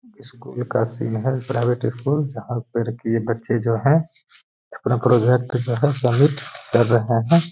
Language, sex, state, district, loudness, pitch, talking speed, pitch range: Hindi, male, Bihar, Gaya, -20 LUFS, 125 Hz, 160 wpm, 115-140 Hz